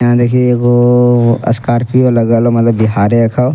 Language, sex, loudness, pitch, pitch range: Angika, male, -11 LUFS, 120 Hz, 115-125 Hz